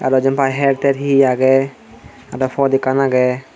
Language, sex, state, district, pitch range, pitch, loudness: Chakma, male, Tripura, Dhalai, 130-135 Hz, 135 Hz, -15 LUFS